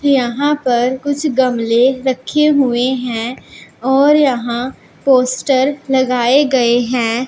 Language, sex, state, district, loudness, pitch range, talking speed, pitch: Hindi, female, Punjab, Pathankot, -14 LUFS, 245-275 Hz, 105 wpm, 260 Hz